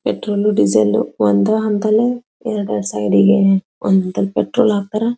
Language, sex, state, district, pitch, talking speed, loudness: Kannada, female, Karnataka, Belgaum, 195 Hz, 115 wpm, -16 LUFS